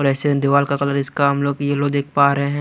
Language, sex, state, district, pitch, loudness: Hindi, male, Chhattisgarh, Raipur, 140 Hz, -18 LUFS